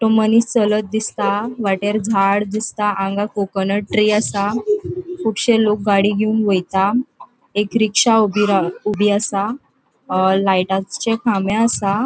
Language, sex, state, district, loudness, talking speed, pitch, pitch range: Konkani, female, Goa, North and South Goa, -17 LUFS, 135 wpm, 210 Hz, 200-220 Hz